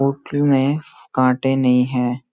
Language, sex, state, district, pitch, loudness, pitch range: Hindi, male, Uttarakhand, Uttarkashi, 135 Hz, -18 LUFS, 125-140 Hz